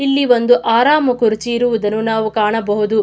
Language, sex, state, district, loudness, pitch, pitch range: Kannada, female, Karnataka, Mysore, -15 LUFS, 225 Hz, 215-245 Hz